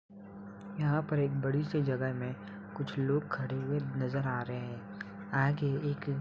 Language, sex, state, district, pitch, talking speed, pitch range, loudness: Hindi, male, Uttar Pradesh, Budaun, 135 Hz, 175 wpm, 120-145 Hz, -34 LUFS